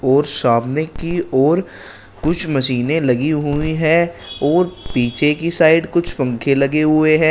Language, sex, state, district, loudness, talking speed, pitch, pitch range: Hindi, male, Uttar Pradesh, Shamli, -16 LUFS, 150 wpm, 150 Hz, 130-160 Hz